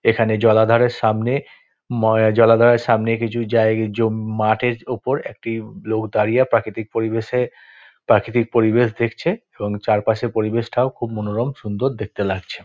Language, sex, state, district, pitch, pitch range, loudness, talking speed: Bengali, male, West Bengal, Dakshin Dinajpur, 115 Hz, 110-120 Hz, -19 LUFS, 135 wpm